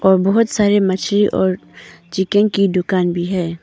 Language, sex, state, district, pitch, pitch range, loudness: Hindi, female, Arunachal Pradesh, Papum Pare, 190 Hz, 180-205 Hz, -16 LUFS